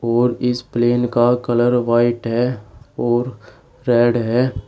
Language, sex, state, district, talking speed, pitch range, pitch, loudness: Hindi, male, Uttar Pradesh, Shamli, 130 wpm, 120-125 Hz, 120 Hz, -18 LUFS